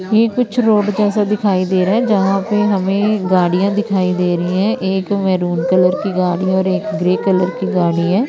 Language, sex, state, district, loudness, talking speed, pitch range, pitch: Hindi, female, Chandigarh, Chandigarh, -15 LUFS, 200 wpm, 180-210 Hz, 190 Hz